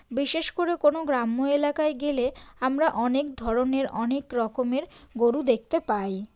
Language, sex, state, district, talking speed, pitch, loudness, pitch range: Bengali, female, West Bengal, Jalpaiguri, 130 wpm, 270 Hz, -26 LUFS, 235-295 Hz